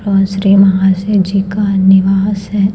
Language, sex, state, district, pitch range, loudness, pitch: Hindi, female, Madhya Pradesh, Bhopal, 195-200 Hz, -11 LUFS, 195 Hz